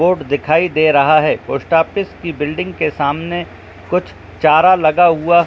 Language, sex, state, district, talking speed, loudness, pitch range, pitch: Hindi, male, Jharkhand, Jamtara, 165 wpm, -14 LUFS, 150-175 Hz, 165 Hz